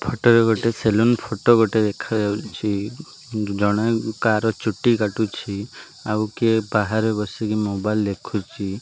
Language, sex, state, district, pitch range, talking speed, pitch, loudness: Odia, male, Odisha, Malkangiri, 105-115 Hz, 115 wpm, 110 Hz, -21 LUFS